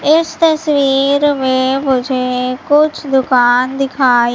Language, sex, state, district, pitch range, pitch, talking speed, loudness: Hindi, female, Madhya Pradesh, Katni, 255-290 Hz, 270 Hz, 95 wpm, -13 LUFS